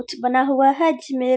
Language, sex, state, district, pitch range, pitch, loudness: Hindi, female, Bihar, Darbhanga, 255-275 Hz, 265 Hz, -18 LUFS